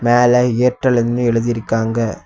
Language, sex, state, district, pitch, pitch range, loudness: Tamil, male, Tamil Nadu, Kanyakumari, 120 Hz, 115-120 Hz, -16 LUFS